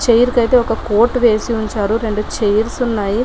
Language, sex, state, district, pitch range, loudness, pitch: Telugu, female, Telangana, Nalgonda, 215-240 Hz, -15 LUFS, 230 Hz